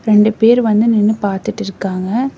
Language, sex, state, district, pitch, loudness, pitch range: Tamil, female, Tamil Nadu, Namakkal, 215 Hz, -14 LUFS, 200-225 Hz